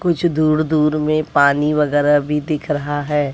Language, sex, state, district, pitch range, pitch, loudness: Hindi, female, Bihar, West Champaran, 145-155 Hz, 150 Hz, -17 LUFS